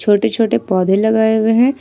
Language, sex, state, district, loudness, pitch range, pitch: Hindi, female, Jharkhand, Ranchi, -14 LUFS, 205-225 Hz, 220 Hz